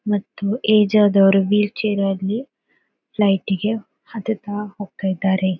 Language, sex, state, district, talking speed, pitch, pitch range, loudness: Kannada, female, Karnataka, Dakshina Kannada, 85 wpm, 205 Hz, 195-215 Hz, -19 LUFS